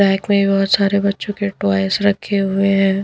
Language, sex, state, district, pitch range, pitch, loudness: Hindi, female, Bihar, Patna, 195-200 Hz, 200 Hz, -16 LUFS